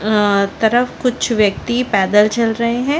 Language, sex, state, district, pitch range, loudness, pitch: Hindi, female, Chhattisgarh, Sarguja, 210-240 Hz, -15 LUFS, 225 Hz